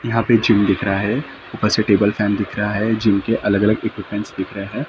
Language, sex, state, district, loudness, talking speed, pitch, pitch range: Hindi, male, Maharashtra, Mumbai Suburban, -18 LUFS, 270 wpm, 105 Hz, 100-110 Hz